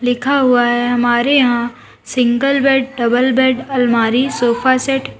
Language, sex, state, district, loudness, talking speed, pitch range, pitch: Hindi, female, Uttar Pradesh, Lalitpur, -14 LUFS, 150 wpm, 240-265 Hz, 250 Hz